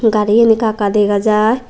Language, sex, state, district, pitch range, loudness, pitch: Chakma, female, Tripura, Dhalai, 210-225 Hz, -13 LUFS, 215 Hz